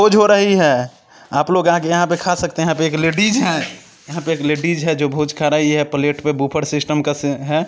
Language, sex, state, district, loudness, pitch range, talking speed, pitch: Maithili, male, Bihar, Samastipur, -16 LUFS, 150-175 Hz, 260 wpm, 155 Hz